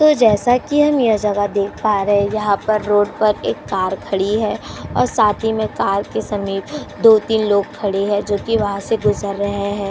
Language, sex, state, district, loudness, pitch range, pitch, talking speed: Hindi, female, Uttar Pradesh, Jyotiba Phule Nagar, -17 LUFS, 200-220 Hz, 205 Hz, 210 wpm